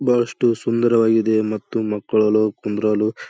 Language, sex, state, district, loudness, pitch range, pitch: Kannada, male, Karnataka, Bijapur, -19 LUFS, 110-115 Hz, 110 Hz